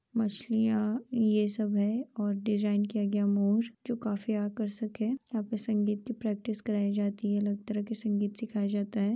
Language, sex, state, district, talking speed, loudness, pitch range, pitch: Hindi, female, Uttar Pradesh, Budaun, 185 wpm, -31 LUFS, 205-225 Hz, 210 Hz